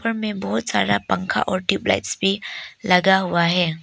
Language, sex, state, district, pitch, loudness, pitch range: Hindi, female, Arunachal Pradesh, Papum Pare, 180 Hz, -20 LUFS, 160-195 Hz